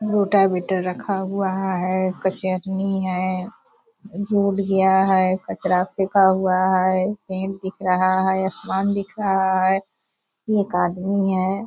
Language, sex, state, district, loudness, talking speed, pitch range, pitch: Hindi, female, Bihar, Purnia, -21 LUFS, 120 wpm, 185-195 Hz, 190 Hz